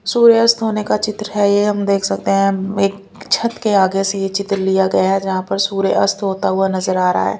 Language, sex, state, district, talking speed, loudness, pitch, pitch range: Hindi, female, Delhi, New Delhi, 245 wpm, -16 LUFS, 195 Hz, 195-210 Hz